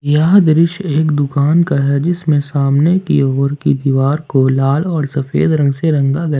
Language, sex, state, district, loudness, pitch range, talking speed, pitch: Hindi, male, Jharkhand, Ranchi, -14 LUFS, 140-160 Hz, 185 wpm, 145 Hz